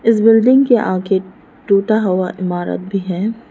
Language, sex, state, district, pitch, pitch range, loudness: Hindi, female, Arunachal Pradesh, Lower Dibang Valley, 200 Hz, 185-225 Hz, -15 LUFS